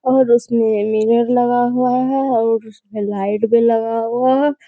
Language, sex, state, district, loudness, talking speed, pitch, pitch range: Hindi, female, Bihar, Bhagalpur, -16 LUFS, 165 wpm, 235 Hz, 220-250 Hz